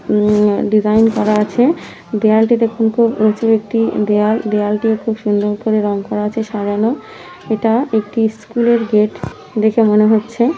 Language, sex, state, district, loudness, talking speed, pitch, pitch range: Bengali, female, West Bengal, Jhargram, -15 LUFS, 155 wpm, 220 Hz, 210-225 Hz